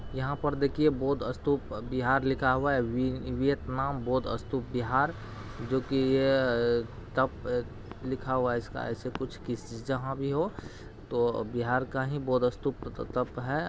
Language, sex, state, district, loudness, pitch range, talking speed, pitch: Bhojpuri, male, Bihar, Saran, -30 LUFS, 120-135 Hz, 150 wpm, 130 Hz